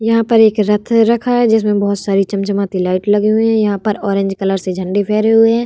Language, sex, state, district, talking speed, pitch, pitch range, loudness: Hindi, female, Bihar, Vaishali, 245 wpm, 210 Hz, 200-225 Hz, -14 LUFS